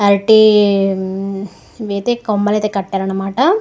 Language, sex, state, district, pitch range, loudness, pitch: Telugu, female, Andhra Pradesh, Guntur, 195-215 Hz, -15 LUFS, 200 Hz